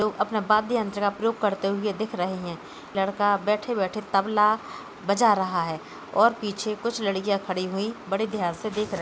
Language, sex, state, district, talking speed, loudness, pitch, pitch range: Hindi, female, Uttar Pradesh, Hamirpur, 185 wpm, -25 LUFS, 205 Hz, 195-215 Hz